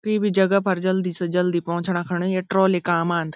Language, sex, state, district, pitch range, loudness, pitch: Garhwali, female, Uttarakhand, Tehri Garhwal, 175-190 Hz, -21 LUFS, 180 Hz